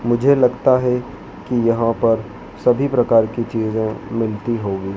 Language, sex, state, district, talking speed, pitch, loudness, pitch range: Hindi, male, Madhya Pradesh, Dhar, 145 wpm, 115 Hz, -18 LUFS, 110-125 Hz